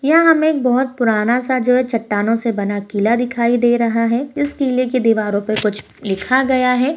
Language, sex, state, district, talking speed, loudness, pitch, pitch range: Hindi, female, Bihar, Araria, 215 wpm, -16 LUFS, 240 Hz, 220-260 Hz